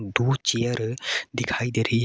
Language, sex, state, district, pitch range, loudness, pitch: Hindi, male, Jharkhand, Garhwa, 115-120 Hz, -25 LUFS, 120 Hz